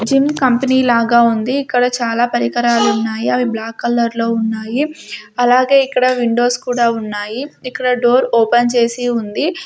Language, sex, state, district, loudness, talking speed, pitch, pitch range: Telugu, female, Andhra Pradesh, Sri Satya Sai, -15 LUFS, 135 wpm, 240 Hz, 230-255 Hz